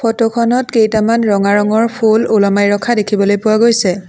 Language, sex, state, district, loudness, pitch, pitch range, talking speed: Assamese, female, Assam, Sonitpur, -12 LUFS, 220 Hz, 205-230 Hz, 160 wpm